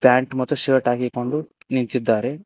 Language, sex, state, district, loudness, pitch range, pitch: Kannada, male, Karnataka, Koppal, -21 LUFS, 125-130 Hz, 130 Hz